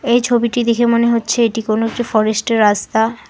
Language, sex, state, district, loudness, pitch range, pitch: Bengali, female, West Bengal, Alipurduar, -15 LUFS, 220-235 Hz, 230 Hz